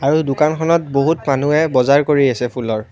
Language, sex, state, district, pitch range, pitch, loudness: Assamese, male, Assam, Kamrup Metropolitan, 130-155 Hz, 140 Hz, -16 LUFS